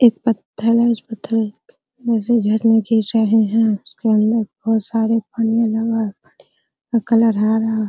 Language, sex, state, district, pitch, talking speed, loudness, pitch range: Hindi, female, Bihar, Araria, 225 Hz, 145 wpm, -18 LUFS, 220-230 Hz